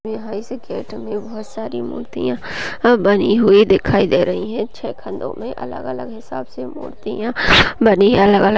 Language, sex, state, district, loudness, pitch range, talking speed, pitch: Hindi, female, Maharashtra, Sindhudurg, -17 LUFS, 195-220 Hz, 175 wpm, 205 Hz